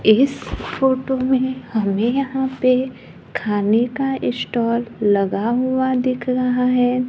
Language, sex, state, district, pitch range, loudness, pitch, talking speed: Hindi, female, Maharashtra, Gondia, 230-260 Hz, -19 LUFS, 250 Hz, 120 wpm